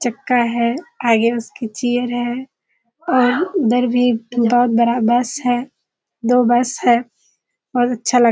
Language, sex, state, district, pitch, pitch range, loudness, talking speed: Hindi, female, Bihar, Kishanganj, 245 Hz, 235-250 Hz, -17 LUFS, 135 wpm